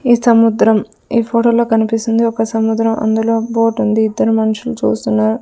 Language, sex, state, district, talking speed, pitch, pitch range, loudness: Telugu, female, Andhra Pradesh, Sri Satya Sai, 145 wpm, 225 Hz, 220-230 Hz, -14 LUFS